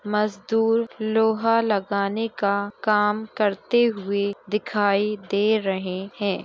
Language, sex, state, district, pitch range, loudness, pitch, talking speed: Hindi, female, Uttar Pradesh, Gorakhpur, 200-220 Hz, -23 LUFS, 210 Hz, 100 wpm